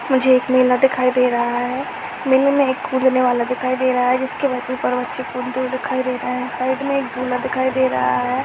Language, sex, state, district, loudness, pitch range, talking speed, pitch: Hindi, male, Chhattisgarh, Sarguja, -19 LUFS, 250-260 Hz, 235 wpm, 255 Hz